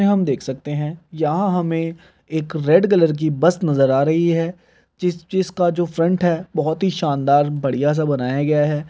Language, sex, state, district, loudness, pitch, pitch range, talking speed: Hindi, male, Bihar, Begusarai, -19 LUFS, 165 Hz, 150-175 Hz, 190 wpm